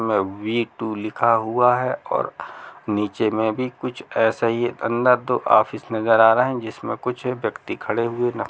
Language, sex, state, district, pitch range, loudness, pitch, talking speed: Hindi, male, Bihar, East Champaran, 110-125 Hz, -21 LUFS, 115 Hz, 190 wpm